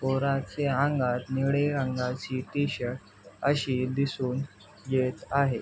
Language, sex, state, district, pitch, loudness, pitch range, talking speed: Marathi, male, Maharashtra, Aurangabad, 130 Hz, -29 LUFS, 125-140 Hz, 95 wpm